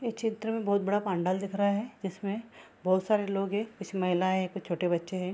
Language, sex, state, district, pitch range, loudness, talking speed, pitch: Hindi, female, Bihar, Darbhanga, 185-210 Hz, -30 LUFS, 235 wpm, 195 Hz